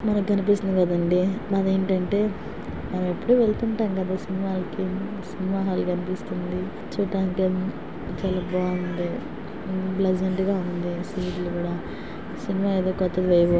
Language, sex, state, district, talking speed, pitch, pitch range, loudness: Telugu, female, Andhra Pradesh, Guntur, 110 wpm, 190 Hz, 180-195 Hz, -25 LUFS